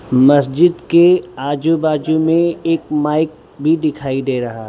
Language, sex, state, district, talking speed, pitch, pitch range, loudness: Hindi, male, Gujarat, Valsad, 155 wpm, 155 Hz, 140-165 Hz, -15 LUFS